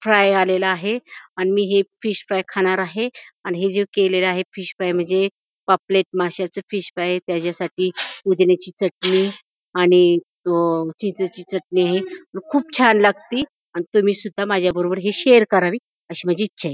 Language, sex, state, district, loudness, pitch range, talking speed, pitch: Marathi, female, Maharashtra, Pune, -19 LUFS, 180-205 Hz, 155 wpm, 190 Hz